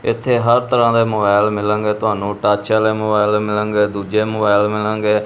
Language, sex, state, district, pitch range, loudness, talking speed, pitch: Punjabi, male, Punjab, Kapurthala, 105-110 Hz, -16 LUFS, 170 wpm, 105 Hz